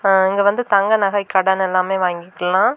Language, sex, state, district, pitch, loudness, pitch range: Tamil, female, Tamil Nadu, Kanyakumari, 190 Hz, -17 LUFS, 185-200 Hz